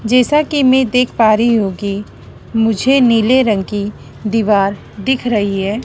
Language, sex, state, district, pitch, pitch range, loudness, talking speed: Hindi, female, Madhya Pradesh, Dhar, 225 Hz, 205-250 Hz, -14 LUFS, 165 wpm